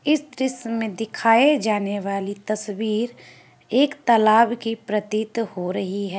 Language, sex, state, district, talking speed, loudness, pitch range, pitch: Hindi, female, Bihar, Gaya, 135 wpm, -22 LUFS, 205-235 Hz, 220 Hz